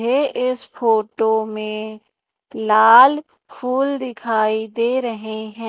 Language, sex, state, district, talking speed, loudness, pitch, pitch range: Hindi, female, Madhya Pradesh, Katni, 105 wpm, -18 LUFS, 225 Hz, 220-255 Hz